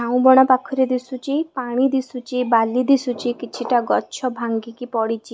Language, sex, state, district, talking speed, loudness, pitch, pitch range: Odia, female, Odisha, Khordha, 135 wpm, -20 LUFS, 250 Hz, 240-260 Hz